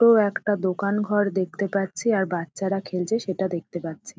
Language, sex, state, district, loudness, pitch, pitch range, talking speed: Bengali, female, West Bengal, Dakshin Dinajpur, -25 LUFS, 195 Hz, 185-205 Hz, 170 wpm